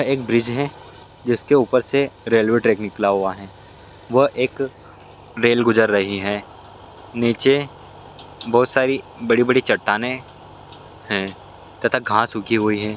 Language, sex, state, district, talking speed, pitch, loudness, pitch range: Hindi, male, Bihar, Lakhisarai, 140 wpm, 115 Hz, -19 LUFS, 100-125 Hz